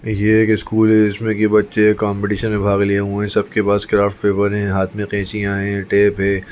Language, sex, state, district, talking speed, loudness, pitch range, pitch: Hindi, male, Chhattisgarh, Bastar, 220 wpm, -17 LUFS, 100-105 Hz, 105 Hz